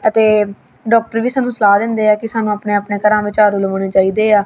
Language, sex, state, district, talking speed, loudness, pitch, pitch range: Punjabi, female, Punjab, Kapurthala, 230 wpm, -14 LUFS, 210 Hz, 205-225 Hz